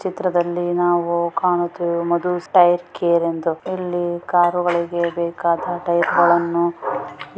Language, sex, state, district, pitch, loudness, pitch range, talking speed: Kannada, female, Karnataka, Mysore, 175 Hz, -19 LUFS, 170-175 Hz, 65 wpm